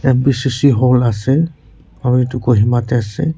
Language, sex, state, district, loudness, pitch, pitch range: Nagamese, male, Nagaland, Kohima, -15 LUFS, 125 Hz, 120-135 Hz